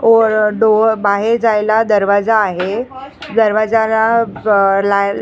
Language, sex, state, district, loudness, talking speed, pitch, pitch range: Marathi, female, Maharashtra, Mumbai Suburban, -13 LUFS, 115 wpm, 215 Hz, 205-225 Hz